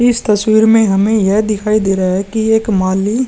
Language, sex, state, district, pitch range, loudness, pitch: Hindi, male, Bihar, Vaishali, 195-220 Hz, -13 LUFS, 215 Hz